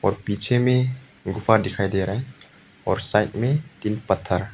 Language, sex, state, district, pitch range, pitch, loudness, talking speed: Hindi, male, Arunachal Pradesh, Papum Pare, 100-125 Hz, 105 Hz, -23 LUFS, 200 wpm